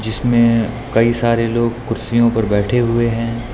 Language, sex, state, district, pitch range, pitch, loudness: Hindi, male, Uttar Pradesh, Lucknow, 115-120 Hz, 115 Hz, -16 LUFS